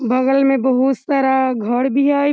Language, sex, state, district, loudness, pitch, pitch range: Maithili, female, Bihar, Samastipur, -16 LUFS, 265 Hz, 255-275 Hz